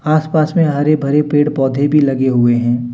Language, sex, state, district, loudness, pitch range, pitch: Hindi, male, Jharkhand, Deoghar, -14 LUFS, 130-150 Hz, 145 Hz